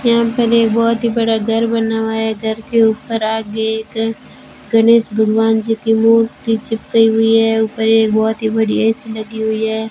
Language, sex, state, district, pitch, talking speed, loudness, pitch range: Hindi, female, Rajasthan, Bikaner, 225 Hz, 195 wpm, -15 LUFS, 220-225 Hz